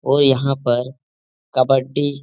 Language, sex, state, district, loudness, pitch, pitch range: Hindi, male, Bihar, Lakhisarai, -18 LUFS, 135 Hz, 125-140 Hz